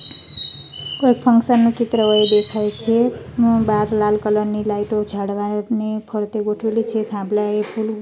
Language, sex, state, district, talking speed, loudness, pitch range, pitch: Gujarati, female, Gujarat, Gandhinagar, 165 wpm, -17 LUFS, 210-225 Hz, 215 Hz